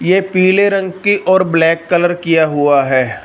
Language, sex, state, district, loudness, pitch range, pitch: Hindi, male, Punjab, Fazilka, -13 LUFS, 160-190 Hz, 175 Hz